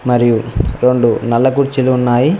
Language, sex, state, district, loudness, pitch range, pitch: Telugu, male, Telangana, Mahabubabad, -13 LUFS, 120-130 Hz, 125 Hz